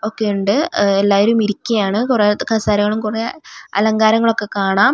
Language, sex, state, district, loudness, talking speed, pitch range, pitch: Malayalam, female, Kerala, Wayanad, -16 LUFS, 135 wpm, 200-225 Hz, 215 Hz